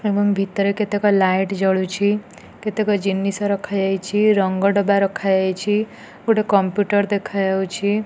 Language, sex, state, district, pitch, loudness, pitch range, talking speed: Odia, female, Odisha, Nuapada, 200 Hz, -19 LUFS, 195-205 Hz, 105 wpm